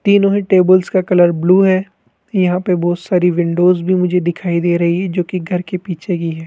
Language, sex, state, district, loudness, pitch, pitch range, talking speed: Hindi, male, Rajasthan, Jaipur, -15 LUFS, 180 Hz, 175-185 Hz, 225 wpm